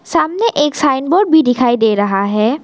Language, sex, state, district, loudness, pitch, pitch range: Hindi, female, Arunachal Pradesh, Lower Dibang Valley, -13 LUFS, 275 Hz, 220-320 Hz